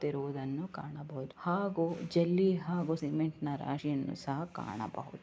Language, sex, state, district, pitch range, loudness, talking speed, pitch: Kannada, female, Karnataka, Raichur, 140-170 Hz, -35 LUFS, 105 wpm, 155 Hz